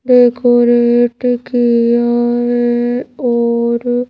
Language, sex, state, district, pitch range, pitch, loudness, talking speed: Hindi, female, Madhya Pradesh, Bhopal, 240-245 Hz, 240 Hz, -13 LUFS, 60 wpm